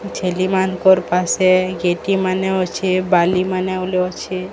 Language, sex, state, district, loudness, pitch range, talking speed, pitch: Odia, female, Odisha, Sambalpur, -17 LUFS, 180-185 Hz, 135 wpm, 185 Hz